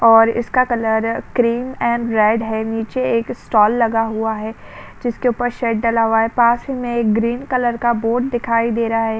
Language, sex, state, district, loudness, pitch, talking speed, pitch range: Hindi, female, Maharashtra, Chandrapur, -17 LUFS, 230 Hz, 200 wpm, 225-240 Hz